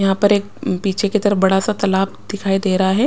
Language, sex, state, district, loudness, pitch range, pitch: Hindi, female, Maharashtra, Washim, -17 LUFS, 190-205 Hz, 195 Hz